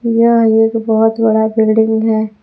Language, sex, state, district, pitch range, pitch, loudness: Hindi, female, Jharkhand, Palamu, 220-225 Hz, 220 Hz, -12 LUFS